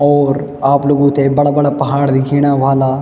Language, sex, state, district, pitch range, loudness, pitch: Garhwali, male, Uttarakhand, Tehri Garhwal, 135-145 Hz, -13 LUFS, 140 Hz